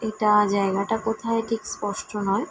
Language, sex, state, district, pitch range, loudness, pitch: Bengali, female, West Bengal, Jalpaiguri, 205-225 Hz, -24 LUFS, 215 Hz